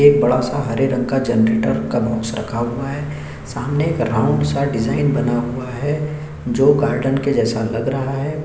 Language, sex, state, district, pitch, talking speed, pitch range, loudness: Hindi, male, Chhattisgarh, Sukma, 130 Hz, 190 wpm, 115-145 Hz, -19 LUFS